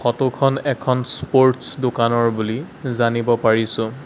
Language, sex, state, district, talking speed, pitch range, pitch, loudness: Assamese, male, Assam, Sonitpur, 120 wpm, 115-135 Hz, 125 Hz, -19 LUFS